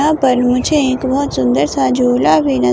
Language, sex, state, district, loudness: Hindi, female, Himachal Pradesh, Shimla, -14 LUFS